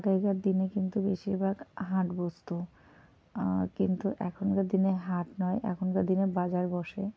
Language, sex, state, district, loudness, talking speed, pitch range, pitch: Bengali, female, West Bengal, North 24 Parganas, -31 LUFS, 125 wpm, 180-195 Hz, 190 Hz